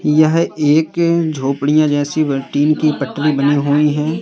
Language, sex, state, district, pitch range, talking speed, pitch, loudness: Hindi, male, Madhya Pradesh, Katni, 145-155 Hz, 140 wpm, 150 Hz, -15 LUFS